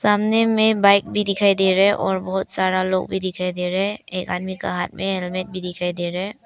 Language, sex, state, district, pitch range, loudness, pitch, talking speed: Hindi, female, Arunachal Pradesh, Papum Pare, 185-200 Hz, -20 LUFS, 190 Hz, 260 wpm